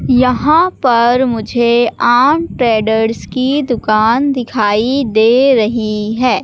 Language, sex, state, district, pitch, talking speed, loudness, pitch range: Hindi, female, Madhya Pradesh, Katni, 240 Hz, 100 wpm, -12 LUFS, 220-260 Hz